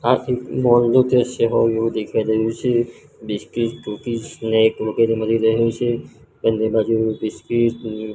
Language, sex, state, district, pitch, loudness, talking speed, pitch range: Gujarati, male, Gujarat, Gandhinagar, 115 Hz, -19 LUFS, 160 wpm, 110-120 Hz